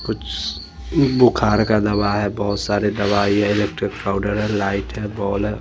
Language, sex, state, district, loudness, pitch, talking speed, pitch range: Hindi, male, Bihar, Kaimur, -19 LUFS, 100 Hz, 180 wpm, 100-105 Hz